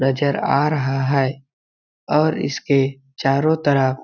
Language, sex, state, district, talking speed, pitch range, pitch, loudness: Hindi, male, Chhattisgarh, Balrampur, 120 wpm, 135-145 Hz, 135 Hz, -19 LUFS